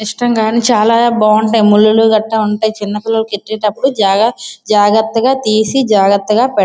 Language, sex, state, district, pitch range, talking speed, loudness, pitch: Telugu, female, Andhra Pradesh, Srikakulam, 210-225 Hz, 125 wpm, -12 LUFS, 220 Hz